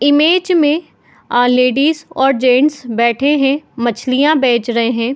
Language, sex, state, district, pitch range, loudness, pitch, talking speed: Hindi, female, Bihar, Madhepura, 240-295 Hz, -14 LUFS, 270 Hz, 130 wpm